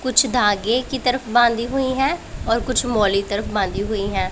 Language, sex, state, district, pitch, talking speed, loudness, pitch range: Hindi, female, Punjab, Pathankot, 235 Hz, 180 wpm, -20 LUFS, 205-255 Hz